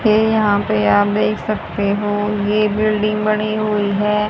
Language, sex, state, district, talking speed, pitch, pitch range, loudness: Hindi, female, Haryana, Jhajjar, 165 wpm, 210 Hz, 200-215 Hz, -17 LUFS